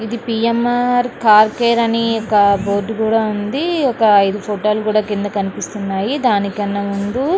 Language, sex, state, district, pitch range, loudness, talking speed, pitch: Telugu, female, Andhra Pradesh, Srikakulam, 205-235 Hz, -16 LUFS, 145 wpm, 215 Hz